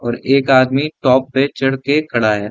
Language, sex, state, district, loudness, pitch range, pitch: Hindi, male, Bihar, Sitamarhi, -15 LUFS, 125-135 Hz, 135 Hz